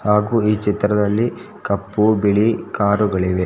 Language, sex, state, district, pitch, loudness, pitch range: Kannada, male, Karnataka, Shimoga, 105 Hz, -18 LUFS, 100-105 Hz